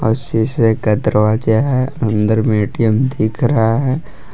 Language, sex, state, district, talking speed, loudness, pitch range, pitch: Hindi, male, Jharkhand, Palamu, 150 wpm, -15 LUFS, 110-130 Hz, 110 Hz